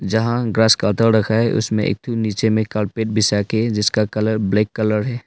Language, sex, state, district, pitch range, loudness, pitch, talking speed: Hindi, male, Arunachal Pradesh, Longding, 105-110 Hz, -18 LUFS, 110 Hz, 195 wpm